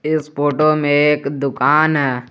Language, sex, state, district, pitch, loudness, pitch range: Hindi, male, Jharkhand, Garhwa, 145 Hz, -16 LUFS, 140-155 Hz